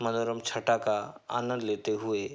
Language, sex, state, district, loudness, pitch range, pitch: Hindi, male, Uttar Pradesh, Hamirpur, -31 LUFS, 105-115 Hz, 115 Hz